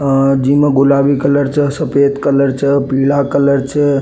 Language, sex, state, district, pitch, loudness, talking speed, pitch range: Rajasthani, male, Rajasthan, Nagaur, 140 Hz, -13 LUFS, 165 wpm, 135-140 Hz